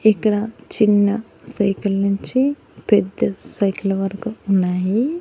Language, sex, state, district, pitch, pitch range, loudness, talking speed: Telugu, female, Andhra Pradesh, Annamaya, 205 Hz, 195-225 Hz, -19 LUFS, 90 wpm